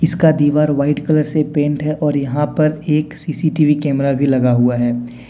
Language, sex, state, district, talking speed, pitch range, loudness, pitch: Hindi, male, Jharkhand, Deoghar, 190 wpm, 140-155 Hz, -16 LUFS, 150 Hz